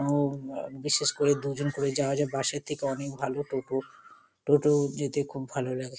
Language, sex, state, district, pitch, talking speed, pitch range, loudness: Bengali, female, West Bengal, Kolkata, 140 Hz, 190 wpm, 135-145 Hz, -29 LUFS